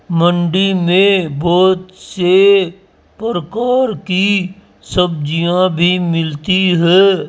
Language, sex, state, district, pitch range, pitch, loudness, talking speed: Hindi, male, Rajasthan, Jaipur, 170-195 Hz, 180 Hz, -13 LUFS, 80 wpm